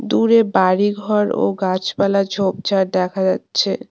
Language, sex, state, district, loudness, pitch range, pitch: Bengali, female, West Bengal, Cooch Behar, -17 LUFS, 185-205 Hz, 195 Hz